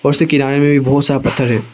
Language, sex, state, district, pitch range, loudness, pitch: Hindi, male, Arunachal Pradesh, Lower Dibang Valley, 130-145 Hz, -13 LUFS, 140 Hz